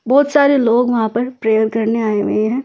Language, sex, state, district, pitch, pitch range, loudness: Hindi, female, Delhi, New Delhi, 230 Hz, 220-260 Hz, -15 LUFS